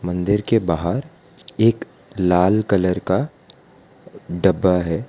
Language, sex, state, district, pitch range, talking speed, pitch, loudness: Hindi, female, Gujarat, Valsad, 90-115 Hz, 105 wpm, 95 Hz, -19 LUFS